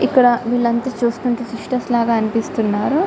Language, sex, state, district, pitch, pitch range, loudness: Telugu, female, Telangana, Karimnagar, 235 Hz, 230-250 Hz, -18 LUFS